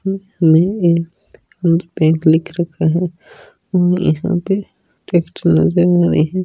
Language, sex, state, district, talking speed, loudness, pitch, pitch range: Hindi, female, Rajasthan, Nagaur, 85 wpm, -15 LUFS, 175 Hz, 165-190 Hz